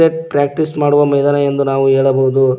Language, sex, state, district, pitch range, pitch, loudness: Kannada, male, Karnataka, Koppal, 135-145 Hz, 140 Hz, -13 LUFS